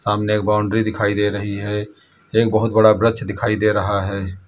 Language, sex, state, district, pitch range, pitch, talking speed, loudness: Hindi, male, Uttar Pradesh, Lalitpur, 105-110 Hz, 105 Hz, 200 wpm, -18 LUFS